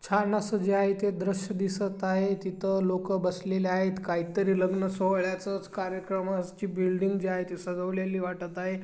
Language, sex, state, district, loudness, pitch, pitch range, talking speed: Marathi, female, Maharashtra, Chandrapur, -29 LUFS, 190 Hz, 185-195 Hz, 165 wpm